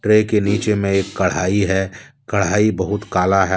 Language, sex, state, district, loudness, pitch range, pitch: Hindi, male, Jharkhand, Deoghar, -18 LUFS, 95-105 Hz, 100 Hz